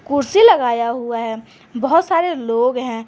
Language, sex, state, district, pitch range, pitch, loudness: Hindi, female, Jharkhand, Garhwa, 235-335 Hz, 250 Hz, -16 LUFS